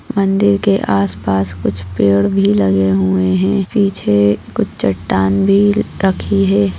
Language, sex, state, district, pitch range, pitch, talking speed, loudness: Hindi, female, West Bengal, Purulia, 95-100 Hz, 100 Hz, 130 wpm, -14 LUFS